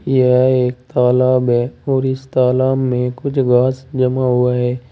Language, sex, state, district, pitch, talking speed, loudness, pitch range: Hindi, male, Uttar Pradesh, Saharanpur, 130 Hz, 160 wpm, -15 LUFS, 125-130 Hz